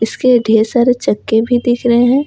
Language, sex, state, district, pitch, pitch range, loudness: Hindi, female, Jharkhand, Ranchi, 240 Hz, 225-250 Hz, -13 LUFS